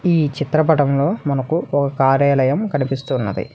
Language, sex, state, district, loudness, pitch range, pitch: Telugu, male, Telangana, Hyderabad, -18 LUFS, 135-155 Hz, 140 Hz